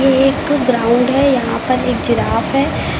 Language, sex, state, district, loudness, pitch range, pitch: Hindi, female, Uttar Pradesh, Lucknow, -15 LUFS, 245-275 Hz, 265 Hz